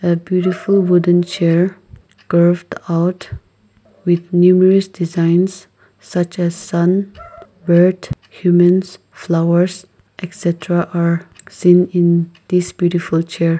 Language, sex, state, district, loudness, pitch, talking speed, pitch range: English, male, Nagaland, Kohima, -15 LUFS, 175 Hz, 95 wpm, 170-185 Hz